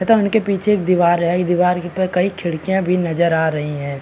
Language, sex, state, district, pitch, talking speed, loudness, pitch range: Hindi, male, Maharashtra, Chandrapur, 180 Hz, 225 wpm, -17 LUFS, 170-190 Hz